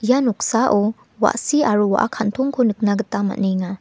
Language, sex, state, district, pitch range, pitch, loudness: Garo, female, Meghalaya, West Garo Hills, 205-245 Hz, 215 Hz, -19 LUFS